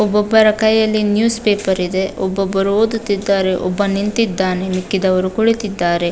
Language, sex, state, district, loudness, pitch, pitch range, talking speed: Kannada, female, Karnataka, Dakshina Kannada, -16 LUFS, 200 Hz, 190-220 Hz, 100 wpm